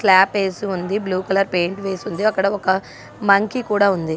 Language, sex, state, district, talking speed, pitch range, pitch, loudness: Telugu, female, Andhra Pradesh, Guntur, 185 wpm, 185-200 Hz, 195 Hz, -19 LUFS